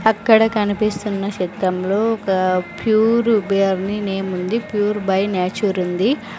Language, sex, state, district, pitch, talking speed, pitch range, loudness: Telugu, female, Andhra Pradesh, Sri Satya Sai, 205 Hz, 115 wpm, 190-220 Hz, -18 LUFS